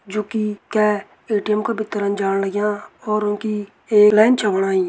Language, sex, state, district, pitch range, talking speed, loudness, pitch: Garhwali, male, Uttarakhand, Tehri Garhwal, 200-215 Hz, 170 wpm, -19 LUFS, 210 Hz